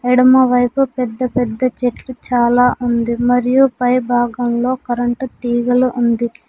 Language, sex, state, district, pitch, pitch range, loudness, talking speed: Telugu, female, Telangana, Mahabubabad, 245 Hz, 240-255 Hz, -15 LUFS, 120 wpm